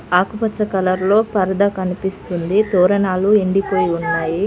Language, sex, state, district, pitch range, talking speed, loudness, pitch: Telugu, female, Telangana, Mahabubabad, 180-205 Hz, 105 wpm, -17 LUFS, 190 Hz